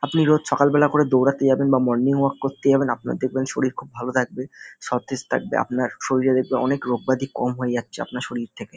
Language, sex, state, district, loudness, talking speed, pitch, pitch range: Bengali, male, West Bengal, North 24 Parganas, -22 LUFS, 205 wpm, 130 Hz, 125-140 Hz